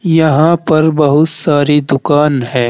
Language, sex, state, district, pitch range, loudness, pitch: Hindi, male, Uttar Pradesh, Saharanpur, 145-160 Hz, -11 LUFS, 150 Hz